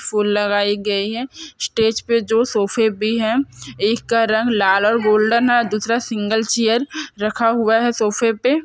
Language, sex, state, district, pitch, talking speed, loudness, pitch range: Hindi, female, Chhattisgarh, Sukma, 225 Hz, 180 wpm, -18 LUFS, 210-235 Hz